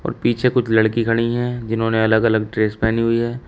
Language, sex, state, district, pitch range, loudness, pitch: Hindi, male, Uttar Pradesh, Shamli, 110-120 Hz, -18 LUFS, 115 Hz